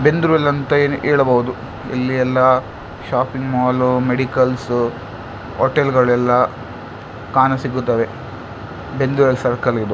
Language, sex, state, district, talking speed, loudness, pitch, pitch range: Kannada, male, Karnataka, Dakshina Kannada, 100 wpm, -17 LUFS, 125 Hz, 120-130 Hz